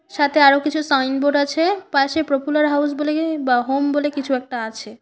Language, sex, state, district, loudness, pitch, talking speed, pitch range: Bengali, female, West Bengal, Cooch Behar, -18 LUFS, 285 Hz, 180 wpm, 275-300 Hz